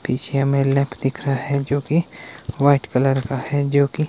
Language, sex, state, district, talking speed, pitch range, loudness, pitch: Hindi, male, Himachal Pradesh, Shimla, 205 wpm, 135-140 Hz, -20 LUFS, 140 Hz